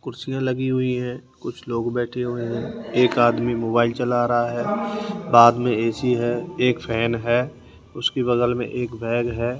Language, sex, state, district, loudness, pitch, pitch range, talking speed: Hindi, male, Rajasthan, Jaipur, -21 LUFS, 120 Hz, 120-125 Hz, 175 wpm